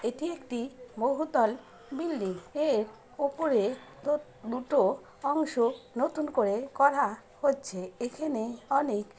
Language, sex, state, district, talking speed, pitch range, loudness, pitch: Bengali, female, West Bengal, Paschim Medinipur, 100 wpm, 230-290 Hz, -30 LUFS, 265 Hz